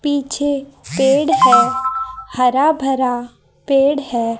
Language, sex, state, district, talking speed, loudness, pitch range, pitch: Hindi, female, Haryana, Jhajjar, 95 wpm, -16 LUFS, 260-285 Hz, 270 Hz